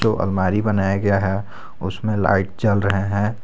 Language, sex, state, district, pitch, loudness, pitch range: Hindi, male, Jharkhand, Garhwa, 100 Hz, -20 LUFS, 95-105 Hz